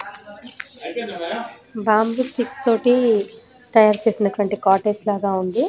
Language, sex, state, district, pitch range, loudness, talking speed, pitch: Telugu, female, Telangana, Nalgonda, 205-235 Hz, -20 LUFS, 85 wpm, 215 Hz